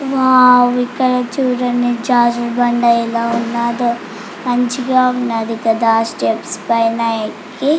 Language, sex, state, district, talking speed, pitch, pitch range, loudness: Telugu, female, Andhra Pradesh, Chittoor, 100 wpm, 245 Hz, 235-250 Hz, -15 LUFS